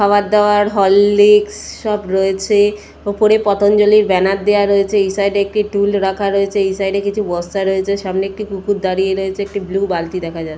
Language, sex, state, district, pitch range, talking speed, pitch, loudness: Bengali, female, West Bengal, Purulia, 195-205 Hz, 195 wpm, 200 Hz, -15 LUFS